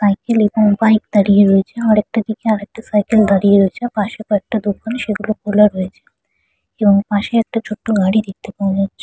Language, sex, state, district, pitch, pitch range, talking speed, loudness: Bengali, female, West Bengal, Purulia, 210 Hz, 200-220 Hz, 160 wpm, -15 LUFS